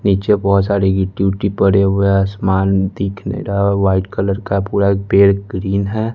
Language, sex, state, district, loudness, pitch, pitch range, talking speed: Hindi, male, Bihar, West Champaran, -15 LUFS, 100 Hz, 95-100 Hz, 195 wpm